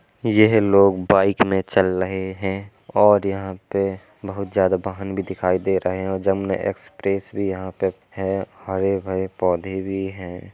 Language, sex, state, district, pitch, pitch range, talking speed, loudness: Hindi, male, Uttar Pradesh, Hamirpur, 95 Hz, 95-100 Hz, 165 wpm, -21 LUFS